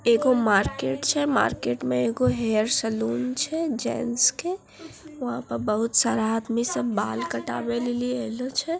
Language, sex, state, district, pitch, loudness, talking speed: Maithili, female, Bihar, Bhagalpur, 230 Hz, -24 LUFS, 145 wpm